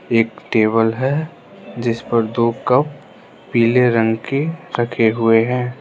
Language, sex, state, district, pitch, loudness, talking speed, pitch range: Hindi, male, Arunachal Pradesh, Lower Dibang Valley, 120 Hz, -17 LUFS, 135 wpm, 115-130 Hz